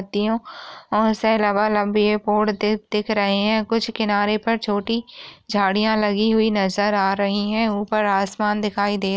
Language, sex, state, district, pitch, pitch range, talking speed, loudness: Hindi, female, Maharashtra, Solapur, 210 Hz, 205-220 Hz, 125 wpm, -20 LUFS